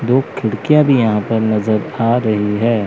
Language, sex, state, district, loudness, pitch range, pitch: Hindi, male, Chandigarh, Chandigarh, -15 LUFS, 110-125 Hz, 115 Hz